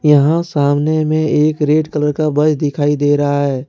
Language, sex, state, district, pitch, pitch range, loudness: Hindi, male, Jharkhand, Ranchi, 150 Hz, 145-155 Hz, -14 LUFS